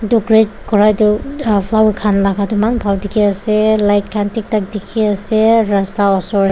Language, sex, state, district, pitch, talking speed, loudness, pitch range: Nagamese, female, Nagaland, Dimapur, 210 Hz, 195 wpm, -14 LUFS, 200-220 Hz